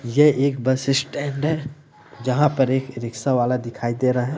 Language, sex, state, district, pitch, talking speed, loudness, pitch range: Hindi, male, Bihar, East Champaran, 130 Hz, 190 wpm, -21 LUFS, 125-145 Hz